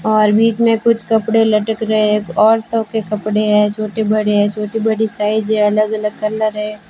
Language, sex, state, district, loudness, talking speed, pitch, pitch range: Hindi, female, Rajasthan, Bikaner, -15 LUFS, 200 wpm, 215 Hz, 210-220 Hz